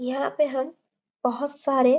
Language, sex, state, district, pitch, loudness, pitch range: Hindi, female, Chhattisgarh, Bastar, 275 Hz, -26 LUFS, 260-285 Hz